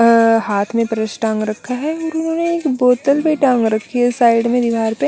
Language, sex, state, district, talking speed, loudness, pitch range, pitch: Hindi, female, Chandigarh, Chandigarh, 200 wpm, -16 LUFS, 225-280 Hz, 240 Hz